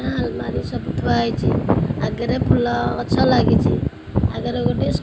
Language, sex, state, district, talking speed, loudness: Odia, female, Odisha, Khordha, 145 wpm, -20 LUFS